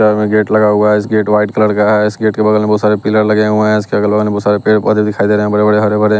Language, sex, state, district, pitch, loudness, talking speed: Hindi, male, Bihar, West Champaran, 105 Hz, -12 LUFS, 360 wpm